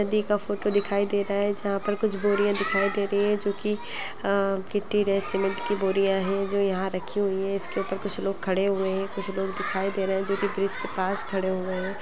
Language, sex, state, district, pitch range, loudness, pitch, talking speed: Hindi, female, Bihar, Gaya, 195-205 Hz, -26 LUFS, 200 Hz, 250 wpm